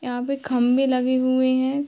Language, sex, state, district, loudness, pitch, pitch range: Hindi, female, Bihar, Darbhanga, -21 LUFS, 255 Hz, 255-270 Hz